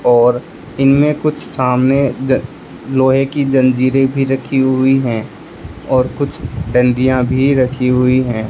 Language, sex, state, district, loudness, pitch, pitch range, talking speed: Hindi, male, Rajasthan, Bikaner, -14 LUFS, 130 Hz, 125-135 Hz, 125 wpm